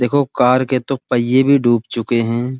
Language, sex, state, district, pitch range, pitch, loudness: Hindi, male, Uttar Pradesh, Muzaffarnagar, 120-130 Hz, 125 Hz, -16 LUFS